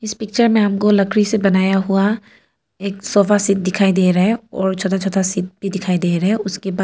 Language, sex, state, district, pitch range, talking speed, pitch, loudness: Hindi, female, Arunachal Pradesh, Papum Pare, 190-210 Hz, 230 wpm, 195 Hz, -17 LUFS